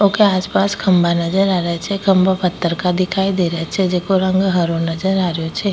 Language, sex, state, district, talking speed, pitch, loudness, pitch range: Rajasthani, female, Rajasthan, Nagaur, 220 wpm, 185 Hz, -17 LUFS, 170-195 Hz